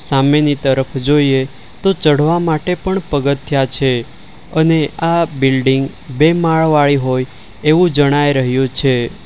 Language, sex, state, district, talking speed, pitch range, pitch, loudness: Gujarati, male, Gujarat, Valsad, 125 wpm, 130-160 Hz, 145 Hz, -14 LUFS